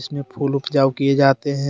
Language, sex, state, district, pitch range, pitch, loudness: Hindi, male, Jharkhand, Deoghar, 135-140 Hz, 140 Hz, -18 LUFS